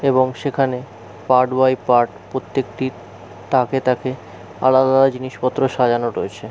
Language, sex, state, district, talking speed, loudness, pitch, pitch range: Bengali, male, West Bengal, Jalpaiguri, 110 wpm, -18 LUFS, 130 Hz, 120-130 Hz